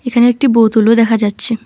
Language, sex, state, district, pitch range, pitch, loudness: Bengali, female, West Bengal, Alipurduar, 225-240 Hz, 230 Hz, -11 LUFS